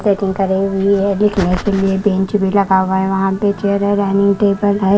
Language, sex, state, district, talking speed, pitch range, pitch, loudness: Hindi, female, Maharashtra, Washim, 230 wpm, 195-200 Hz, 195 Hz, -15 LUFS